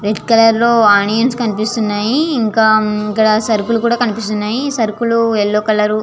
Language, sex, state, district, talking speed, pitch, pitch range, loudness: Telugu, female, Andhra Pradesh, Visakhapatnam, 140 wpm, 220 Hz, 210-230 Hz, -13 LUFS